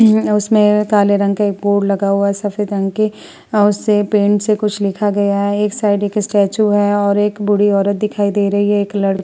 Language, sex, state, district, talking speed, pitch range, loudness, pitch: Hindi, female, Uttar Pradesh, Muzaffarnagar, 235 wpm, 200-210 Hz, -15 LUFS, 205 Hz